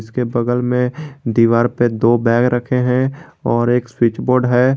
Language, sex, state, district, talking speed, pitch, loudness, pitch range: Hindi, male, Jharkhand, Garhwa, 175 wpm, 125 Hz, -16 LUFS, 120-125 Hz